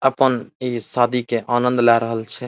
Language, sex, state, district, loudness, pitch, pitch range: Maithili, male, Bihar, Saharsa, -19 LUFS, 120 Hz, 115-125 Hz